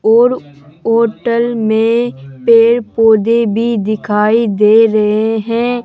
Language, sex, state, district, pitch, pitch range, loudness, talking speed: Hindi, male, Rajasthan, Jaipur, 225 Hz, 215-230 Hz, -12 LUFS, 100 wpm